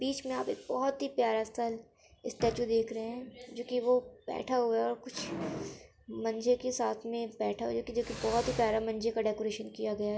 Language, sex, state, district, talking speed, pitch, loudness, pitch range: Hindi, female, Uttar Pradesh, Varanasi, 225 wpm, 235 Hz, -33 LUFS, 225-250 Hz